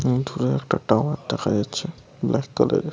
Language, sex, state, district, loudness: Bengali, male, West Bengal, Paschim Medinipur, -23 LUFS